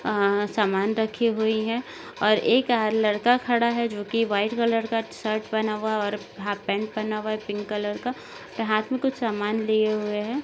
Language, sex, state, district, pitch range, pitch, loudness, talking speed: Hindi, female, Maharashtra, Nagpur, 210-230 Hz, 215 Hz, -25 LUFS, 190 wpm